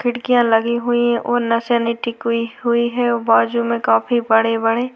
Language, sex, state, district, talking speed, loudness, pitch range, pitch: Hindi, female, Chhattisgarh, Korba, 195 wpm, -17 LUFS, 225-240 Hz, 235 Hz